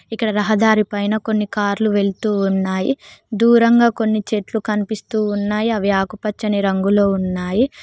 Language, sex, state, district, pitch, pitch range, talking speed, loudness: Telugu, female, Telangana, Mahabubabad, 210 Hz, 200-220 Hz, 125 wpm, -18 LUFS